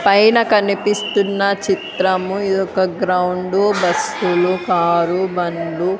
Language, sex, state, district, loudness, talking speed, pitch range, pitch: Telugu, female, Andhra Pradesh, Sri Satya Sai, -17 LUFS, 80 wpm, 180-200 Hz, 190 Hz